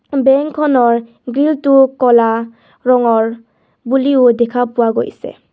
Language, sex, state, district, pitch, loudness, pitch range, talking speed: Assamese, female, Assam, Kamrup Metropolitan, 245 Hz, -13 LUFS, 230-270 Hz, 110 wpm